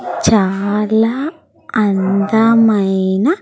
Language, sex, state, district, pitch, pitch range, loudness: Telugu, female, Andhra Pradesh, Sri Satya Sai, 215 Hz, 195-225 Hz, -14 LUFS